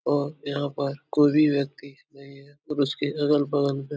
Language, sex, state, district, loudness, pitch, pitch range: Hindi, male, Uttar Pradesh, Etah, -25 LUFS, 145 Hz, 140-145 Hz